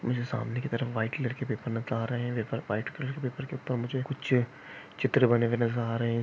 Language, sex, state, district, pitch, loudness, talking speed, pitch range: Hindi, male, West Bengal, Jhargram, 120 Hz, -30 LUFS, 260 wpm, 115-130 Hz